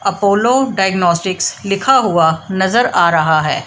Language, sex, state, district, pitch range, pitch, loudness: Hindi, female, Bihar, Samastipur, 170-205 Hz, 190 Hz, -13 LUFS